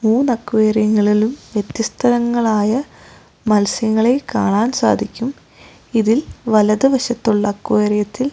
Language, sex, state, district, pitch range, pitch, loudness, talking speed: Malayalam, female, Kerala, Kozhikode, 210-240 Hz, 220 Hz, -17 LUFS, 80 wpm